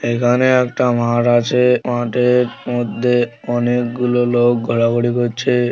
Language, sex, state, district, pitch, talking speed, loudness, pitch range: Bengali, male, West Bengal, Paschim Medinipur, 120 Hz, 105 wpm, -16 LUFS, 120-125 Hz